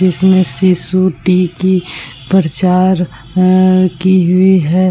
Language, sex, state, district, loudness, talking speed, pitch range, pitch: Hindi, female, Bihar, Vaishali, -11 LUFS, 110 wpm, 175-185 Hz, 185 Hz